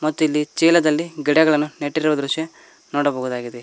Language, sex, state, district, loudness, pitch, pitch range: Kannada, male, Karnataka, Koppal, -19 LUFS, 150 Hz, 145-160 Hz